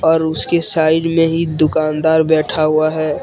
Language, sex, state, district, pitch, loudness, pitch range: Hindi, male, Jharkhand, Deoghar, 160 Hz, -14 LUFS, 155-165 Hz